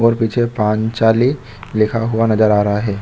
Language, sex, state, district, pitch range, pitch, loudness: Hindi, male, Chhattisgarh, Bilaspur, 105-115 Hz, 110 Hz, -16 LUFS